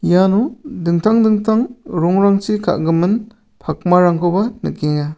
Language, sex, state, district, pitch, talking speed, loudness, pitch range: Garo, male, Meghalaya, South Garo Hills, 195 Hz, 80 wpm, -16 LUFS, 175-220 Hz